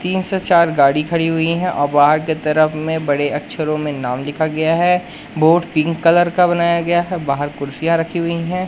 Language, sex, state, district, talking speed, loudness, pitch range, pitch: Hindi, male, Madhya Pradesh, Katni, 215 wpm, -16 LUFS, 150-170 Hz, 160 Hz